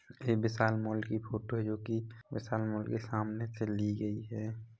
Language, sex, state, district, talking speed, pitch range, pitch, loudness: Hindi, male, Chhattisgarh, Rajnandgaon, 200 wpm, 110-115 Hz, 110 Hz, -36 LUFS